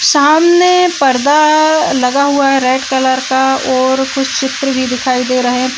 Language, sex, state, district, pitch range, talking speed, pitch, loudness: Hindi, female, Uttarakhand, Uttarkashi, 260-295 Hz, 165 wpm, 265 Hz, -11 LUFS